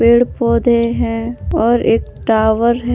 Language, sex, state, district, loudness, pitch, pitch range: Hindi, male, Jharkhand, Palamu, -15 LUFS, 235 Hz, 230-240 Hz